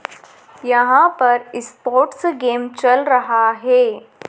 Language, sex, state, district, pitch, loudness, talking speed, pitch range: Hindi, female, Madhya Pradesh, Dhar, 255 Hz, -16 LUFS, 100 wpm, 245-295 Hz